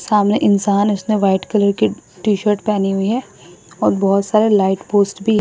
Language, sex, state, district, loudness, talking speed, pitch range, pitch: Hindi, female, Assam, Sonitpur, -16 LUFS, 200 wpm, 195-210 Hz, 200 Hz